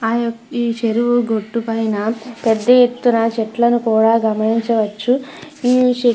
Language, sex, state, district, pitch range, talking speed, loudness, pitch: Telugu, female, Andhra Pradesh, Krishna, 225-245 Hz, 125 wpm, -16 LUFS, 230 Hz